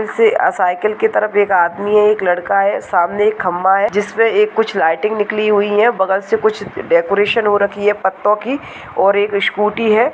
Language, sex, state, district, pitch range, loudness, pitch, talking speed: Hindi, female, Uttar Pradesh, Muzaffarnagar, 195-215 Hz, -15 LUFS, 205 Hz, 195 wpm